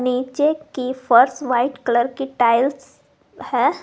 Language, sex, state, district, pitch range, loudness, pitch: Hindi, female, Jharkhand, Garhwa, 245-270 Hz, -19 LUFS, 255 Hz